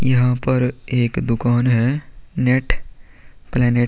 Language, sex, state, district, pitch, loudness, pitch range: Hindi, male, Chhattisgarh, Korba, 125 Hz, -19 LUFS, 120-130 Hz